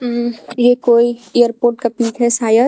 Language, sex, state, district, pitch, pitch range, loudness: Hindi, female, Jharkhand, Garhwa, 240 Hz, 235-240 Hz, -15 LUFS